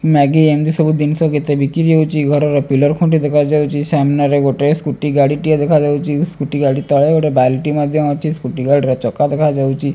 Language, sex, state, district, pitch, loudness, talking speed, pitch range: Odia, male, Odisha, Malkangiri, 145 Hz, -14 LUFS, 185 wpm, 140-155 Hz